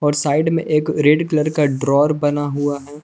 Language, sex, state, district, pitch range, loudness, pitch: Hindi, male, Jharkhand, Palamu, 145-155 Hz, -17 LUFS, 150 Hz